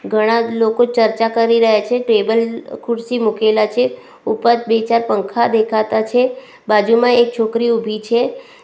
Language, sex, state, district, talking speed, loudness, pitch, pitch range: Gujarati, female, Gujarat, Valsad, 155 wpm, -15 LUFS, 230 Hz, 220-240 Hz